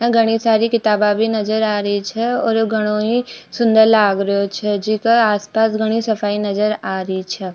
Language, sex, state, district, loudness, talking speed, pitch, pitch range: Rajasthani, female, Rajasthan, Nagaur, -16 LUFS, 190 wpm, 215 Hz, 205-225 Hz